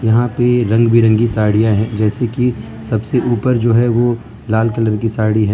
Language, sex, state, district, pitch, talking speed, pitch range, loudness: Hindi, male, Gujarat, Valsad, 115 Hz, 195 wpm, 110-120 Hz, -15 LUFS